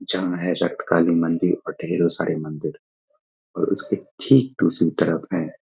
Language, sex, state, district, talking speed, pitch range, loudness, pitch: Hindi, male, Bihar, Saharsa, 160 wpm, 85-90 Hz, -22 LUFS, 85 Hz